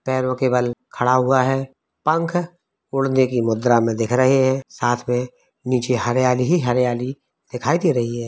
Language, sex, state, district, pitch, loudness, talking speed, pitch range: Hindi, male, Uttar Pradesh, Varanasi, 130 Hz, -20 LUFS, 175 wpm, 120-135 Hz